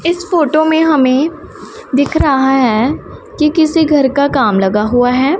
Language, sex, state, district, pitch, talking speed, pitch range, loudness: Hindi, female, Punjab, Pathankot, 285 Hz, 155 wpm, 260-315 Hz, -12 LUFS